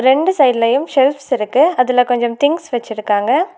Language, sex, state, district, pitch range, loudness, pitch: Tamil, female, Tamil Nadu, Nilgiris, 240-295 Hz, -15 LUFS, 260 Hz